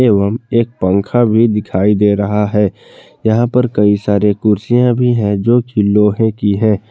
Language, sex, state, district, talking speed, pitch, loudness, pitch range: Hindi, male, Jharkhand, Palamu, 175 wpm, 105 Hz, -13 LUFS, 105-120 Hz